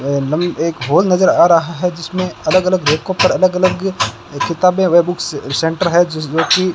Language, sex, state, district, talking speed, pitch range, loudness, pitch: Hindi, male, Rajasthan, Bikaner, 205 wpm, 160-185 Hz, -15 LUFS, 175 Hz